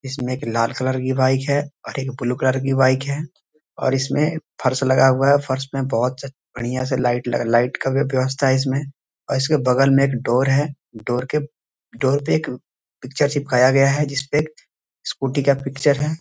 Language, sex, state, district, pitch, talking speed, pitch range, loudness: Hindi, male, Bihar, East Champaran, 135 Hz, 210 wpm, 130-140 Hz, -20 LUFS